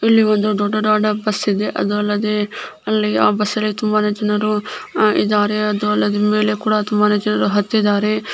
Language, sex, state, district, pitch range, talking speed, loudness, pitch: Kannada, male, Karnataka, Belgaum, 210-215 Hz, 115 wpm, -17 LUFS, 210 Hz